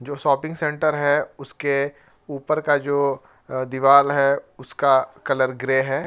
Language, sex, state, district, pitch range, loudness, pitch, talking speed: Hindi, male, Jharkhand, Ranchi, 135-145 Hz, -21 LUFS, 140 Hz, 150 wpm